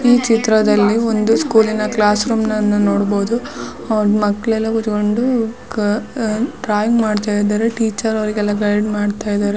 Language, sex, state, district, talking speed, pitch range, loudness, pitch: Kannada, female, Karnataka, Shimoga, 130 wpm, 210-225 Hz, -16 LUFS, 215 Hz